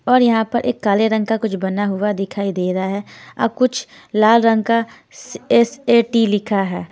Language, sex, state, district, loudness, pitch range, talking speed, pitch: Hindi, female, Himachal Pradesh, Shimla, -17 LUFS, 200-230 Hz, 190 wpm, 220 Hz